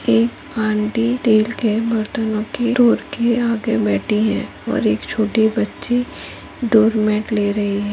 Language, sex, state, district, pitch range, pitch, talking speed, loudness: Hindi, female, Rajasthan, Nagaur, 210-235 Hz, 220 Hz, 145 wpm, -18 LUFS